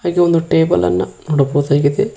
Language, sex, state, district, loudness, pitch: Kannada, male, Karnataka, Koppal, -15 LUFS, 145 Hz